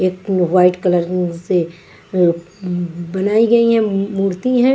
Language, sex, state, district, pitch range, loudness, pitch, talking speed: Hindi, female, Bihar, West Champaran, 175-200 Hz, -16 LUFS, 185 Hz, 115 wpm